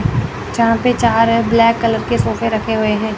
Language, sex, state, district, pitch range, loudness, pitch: Hindi, female, Chandigarh, Chandigarh, 220-230 Hz, -15 LUFS, 230 Hz